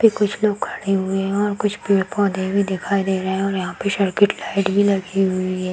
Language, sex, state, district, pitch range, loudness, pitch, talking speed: Hindi, female, Bihar, Darbhanga, 190-205 Hz, -20 LUFS, 195 Hz, 250 wpm